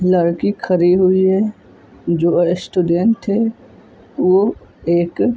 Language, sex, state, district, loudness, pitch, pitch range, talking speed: Hindi, male, Uttar Pradesh, Budaun, -16 LUFS, 185 Hz, 175-205 Hz, 110 wpm